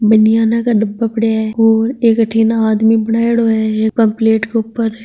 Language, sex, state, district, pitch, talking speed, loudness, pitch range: Marwari, male, Rajasthan, Nagaur, 225 Hz, 180 wpm, -13 LUFS, 220-230 Hz